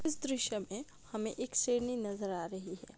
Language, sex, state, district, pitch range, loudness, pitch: Maithili, female, Bihar, Darbhanga, 200-250 Hz, -37 LUFS, 225 Hz